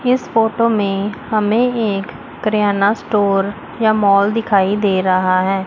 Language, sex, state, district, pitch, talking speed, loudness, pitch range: Hindi, female, Chandigarh, Chandigarh, 205 Hz, 135 wpm, -16 LUFS, 195-225 Hz